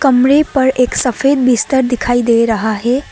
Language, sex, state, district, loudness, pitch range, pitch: Hindi, female, Assam, Kamrup Metropolitan, -13 LUFS, 240-270 Hz, 250 Hz